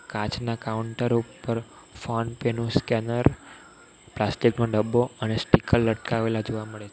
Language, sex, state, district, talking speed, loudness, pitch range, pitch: Gujarati, male, Gujarat, Valsad, 130 wpm, -26 LUFS, 110-120 Hz, 115 Hz